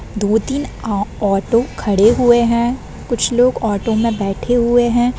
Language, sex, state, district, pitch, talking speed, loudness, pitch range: Hindi, female, Bihar, Sitamarhi, 235 Hz, 160 wpm, -16 LUFS, 210-245 Hz